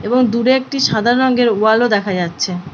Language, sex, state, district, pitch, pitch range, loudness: Bengali, female, West Bengal, Purulia, 230 Hz, 200-250 Hz, -15 LUFS